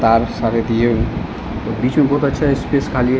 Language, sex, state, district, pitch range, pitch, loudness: Hindi, male, Uttar Pradesh, Ghazipur, 115-140 Hz, 120 Hz, -17 LUFS